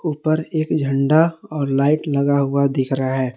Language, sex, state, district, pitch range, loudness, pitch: Hindi, male, Jharkhand, Garhwa, 135-155 Hz, -19 LUFS, 140 Hz